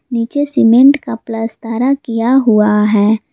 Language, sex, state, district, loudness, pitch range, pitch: Hindi, female, Jharkhand, Garhwa, -12 LUFS, 225-260 Hz, 230 Hz